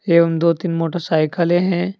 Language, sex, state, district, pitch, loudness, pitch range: Hindi, male, Jharkhand, Deoghar, 170 Hz, -18 LUFS, 165-175 Hz